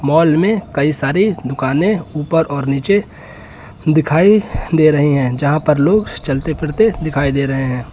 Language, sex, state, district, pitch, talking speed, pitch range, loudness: Hindi, male, Uttar Pradesh, Lucknow, 150 Hz, 160 wpm, 140-165 Hz, -15 LUFS